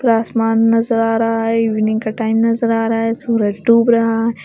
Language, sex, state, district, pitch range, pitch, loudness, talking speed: Hindi, female, Bihar, West Champaran, 225-230 Hz, 225 Hz, -15 LUFS, 215 wpm